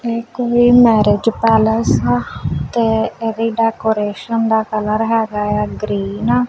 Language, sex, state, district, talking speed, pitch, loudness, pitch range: Punjabi, female, Punjab, Kapurthala, 130 wpm, 225 Hz, -16 LUFS, 210-230 Hz